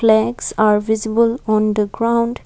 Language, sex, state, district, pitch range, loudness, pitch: English, female, Assam, Kamrup Metropolitan, 215-230 Hz, -17 LUFS, 220 Hz